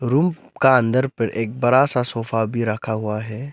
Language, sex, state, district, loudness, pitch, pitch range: Hindi, male, Arunachal Pradesh, Lower Dibang Valley, -20 LUFS, 120 Hz, 115-130 Hz